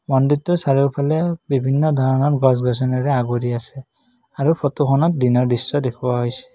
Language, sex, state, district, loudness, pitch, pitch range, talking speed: Assamese, male, Assam, Kamrup Metropolitan, -18 LUFS, 135 Hz, 125-145 Hz, 130 wpm